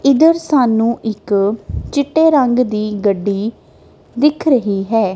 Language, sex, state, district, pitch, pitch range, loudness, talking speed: Punjabi, female, Punjab, Kapurthala, 230 Hz, 205-280 Hz, -15 LUFS, 115 wpm